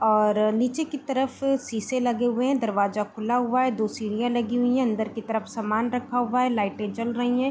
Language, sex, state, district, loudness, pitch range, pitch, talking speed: Hindi, female, Bihar, Vaishali, -25 LUFS, 215-250 Hz, 240 Hz, 225 wpm